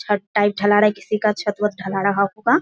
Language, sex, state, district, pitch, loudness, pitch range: Hindi, female, Bihar, Sitamarhi, 205 Hz, -19 LUFS, 200-210 Hz